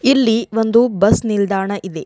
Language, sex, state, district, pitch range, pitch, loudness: Kannada, female, Karnataka, Bidar, 200-230 Hz, 215 Hz, -15 LUFS